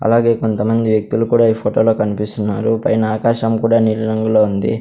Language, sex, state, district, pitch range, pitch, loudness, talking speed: Telugu, male, Andhra Pradesh, Sri Satya Sai, 110-115 Hz, 110 Hz, -15 LUFS, 160 wpm